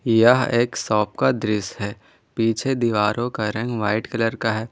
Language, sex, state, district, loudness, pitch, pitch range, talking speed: Hindi, male, Jharkhand, Ranchi, -21 LUFS, 115 Hz, 105-120 Hz, 180 wpm